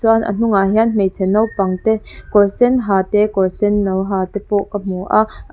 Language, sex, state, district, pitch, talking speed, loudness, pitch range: Mizo, female, Mizoram, Aizawl, 205 Hz, 215 wpm, -16 LUFS, 195-220 Hz